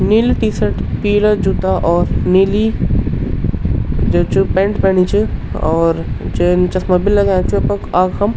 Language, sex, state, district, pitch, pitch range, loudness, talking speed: Garhwali, male, Uttarakhand, Tehri Garhwal, 190 Hz, 180-205 Hz, -15 LUFS, 135 wpm